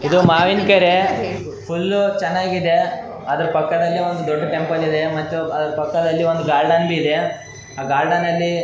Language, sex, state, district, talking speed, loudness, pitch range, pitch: Kannada, male, Karnataka, Raichur, 140 wpm, -18 LUFS, 155-180 Hz, 170 Hz